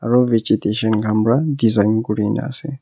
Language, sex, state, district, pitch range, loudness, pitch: Nagamese, male, Nagaland, Kohima, 105-125 Hz, -17 LUFS, 110 Hz